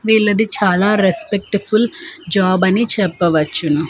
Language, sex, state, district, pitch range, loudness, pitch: Telugu, female, Andhra Pradesh, Manyam, 180-215 Hz, -16 LUFS, 200 Hz